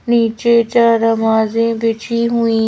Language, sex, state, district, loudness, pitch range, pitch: Hindi, female, Madhya Pradesh, Bhopal, -14 LUFS, 225-235 Hz, 230 Hz